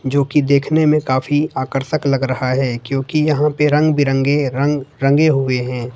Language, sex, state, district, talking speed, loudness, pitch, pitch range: Hindi, male, Jharkhand, Ranchi, 180 wpm, -16 LUFS, 140 Hz, 130-150 Hz